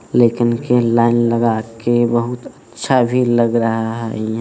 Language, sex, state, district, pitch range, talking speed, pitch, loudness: Hindi, male, Jharkhand, Palamu, 115-120 Hz, 150 wpm, 120 Hz, -16 LUFS